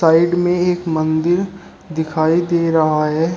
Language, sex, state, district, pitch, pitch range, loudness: Hindi, male, Uttar Pradesh, Shamli, 165 Hz, 160-175 Hz, -16 LUFS